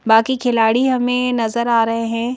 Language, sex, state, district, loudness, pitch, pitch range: Hindi, female, Madhya Pradesh, Bhopal, -17 LUFS, 235 Hz, 225-250 Hz